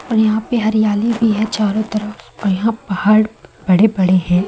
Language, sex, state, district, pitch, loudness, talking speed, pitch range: Hindi, female, Madhya Pradesh, Umaria, 215 Hz, -16 LUFS, 145 wpm, 195-220 Hz